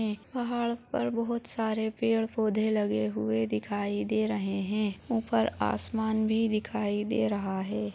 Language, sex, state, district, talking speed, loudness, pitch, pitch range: Hindi, female, Chhattisgarh, Balrampur, 135 wpm, -30 LUFS, 215 Hz, 190-225 Hz